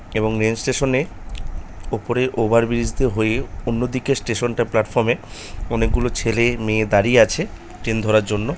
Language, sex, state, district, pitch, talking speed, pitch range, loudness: Bengali, male, West Bengal, North 24 Parganas, 115 Hz, 190 wpm, 110-120 Hz, -20 LUFS